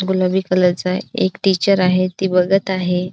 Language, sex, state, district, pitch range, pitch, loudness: Marathi, female, Maharashtra, Dhule, 180-190 Hz, 185 Hz, -17 LUFS